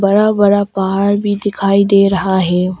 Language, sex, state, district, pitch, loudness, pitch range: Hindi, female, Arunachal Pradesh, Longding, 200 Hz, -13 LUFS, 190-205 Hz